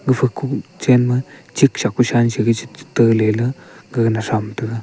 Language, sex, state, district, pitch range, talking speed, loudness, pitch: Wancho, male, Arunachal Pradesh, Longding, 110-125 Hz, 135 wpm, -18 LUFS, 115 Hz